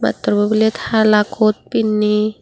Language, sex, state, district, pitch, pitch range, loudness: Chakma, female, Tripura, Unakoti, 215 Hz, 210-220 Hz, -16 LUFS